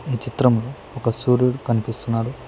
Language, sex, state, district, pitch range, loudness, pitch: Telugu, male, Telangana, Mahabubabad, 115-125 Hz, -21 LUFS, 125 Hz